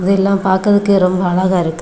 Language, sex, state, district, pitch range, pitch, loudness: Tamil, female, Tamil Nadu, Kanyakumari, 180-195 Hz, 190 Hz, -14 LUFS